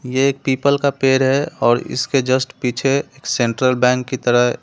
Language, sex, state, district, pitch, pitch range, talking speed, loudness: Hindi, male, Delhi, New Delhi, 130 Hz, 125-135 Hz, 195 wpm, -17 LUFS